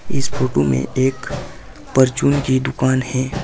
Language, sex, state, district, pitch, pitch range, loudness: Hindi, male, Uttar Pradesh, Saharanpur, 130 Hz, 130-135 Hz, -18 LUFS